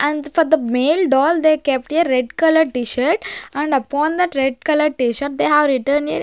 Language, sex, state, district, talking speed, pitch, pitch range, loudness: English, female, Maharashtra, Gondia, 210 wpm, 295 Hz, 270-315 Hz, -17 LUFS